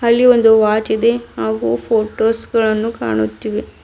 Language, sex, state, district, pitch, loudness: Kannada, female, Karnataka, Bidar, 220 Hz, -15 LUFS